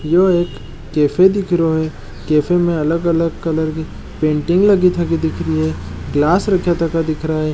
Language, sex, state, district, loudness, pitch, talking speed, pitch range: Marwari, male, Rajasthan, Nagaur, -16 LUFS, 160 Hz, 150 wpm, 150-175 Hz